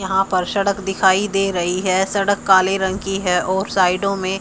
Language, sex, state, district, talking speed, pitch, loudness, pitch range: Hindi, male, Haryana, Charkhi Dadri, 205 wpm, 190 Hz, -18 LUFS, 185-195 Hz